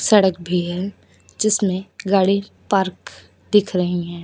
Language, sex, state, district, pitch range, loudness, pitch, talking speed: Hindi, female, Uttar Pradesh, Lucknow, 180-200 Hz, -20 LUFS, 190 Hz, 125 wpm